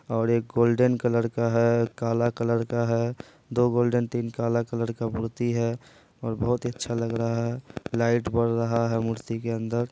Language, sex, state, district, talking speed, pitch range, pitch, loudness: Hindi, male, Bihar, Purnia, 195 wpm, 115-120 Hz, 115 Hz, -26 LUFS